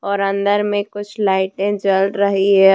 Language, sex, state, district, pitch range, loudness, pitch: Hindi, female, Jharkhand, Deoghar, 195-205 Hz, -17 LUFS, 200 Hz